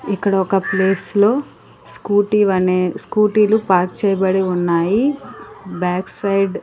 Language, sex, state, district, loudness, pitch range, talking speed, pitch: Telugu, female, Andhra Pradesh, Sri Satya Sai, -17 LUFS, 185-205 Hz, 125 wpm, 195 Hz